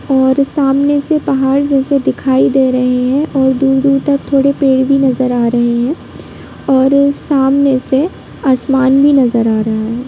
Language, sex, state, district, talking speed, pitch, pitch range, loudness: Hindi, female, Bihar, Sitamarhi, 175 wpm, 270 Hz, 260-280 Hz, -12 LUFS